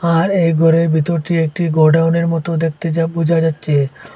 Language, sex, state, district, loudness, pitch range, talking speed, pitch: Bengali, male, Assam, Hailakandi, -15 LUFS, 160-170 Hz, 160 wpm, 165 Hz